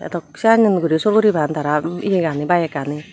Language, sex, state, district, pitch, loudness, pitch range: Chakma, female, Tripura, Unakoti, 170 Hz, -17 LUFS, 150-205 Hz